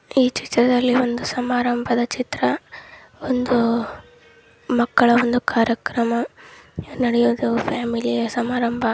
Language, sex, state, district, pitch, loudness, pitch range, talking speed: Kannada, male, Karnataka, Dharwad, 240 Hz, -20 LUFS, 235-250 Hz, 80 wpm